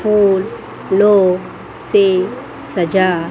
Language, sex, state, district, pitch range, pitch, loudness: Hindi, female, Chandigarh, Chandigarh, 185-210 Hz, 195 Hz, -14 LUFS